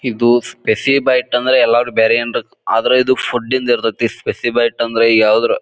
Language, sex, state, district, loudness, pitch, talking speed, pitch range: Kannada, male, Karnataka, Bijapur, -14 LUFS, 120 Hz, 160 wpm, 115-125 Hz